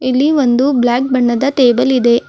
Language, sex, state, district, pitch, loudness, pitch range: Kannada, female, Karnataka, Bidar, 255 Hz, -12 LUFS, 245-270 Hz